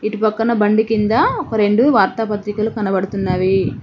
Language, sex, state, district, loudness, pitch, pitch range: Telugu, female, Telangana, Mahabubabad, -16 LUFS, 215 Hz, 205-225 Hz